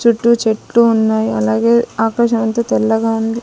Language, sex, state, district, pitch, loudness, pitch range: Telugu, female, Andhra Pradesh, Sri Satya Sai, 225 Hz, -14 LUFS, 220-235 Hz